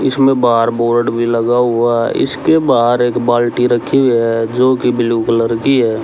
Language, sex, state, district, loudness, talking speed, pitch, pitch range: Hindi, male, Haryana, Rohtak, -13 LUFS, 190 wpm, 120 Hz, 115-125 Hz